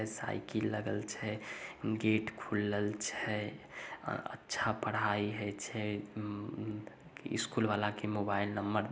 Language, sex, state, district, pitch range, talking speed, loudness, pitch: Magahi, male, Bihar, Samastipur, 105-110 Hz, 135 wpm, -37 LUFS, 105 Hz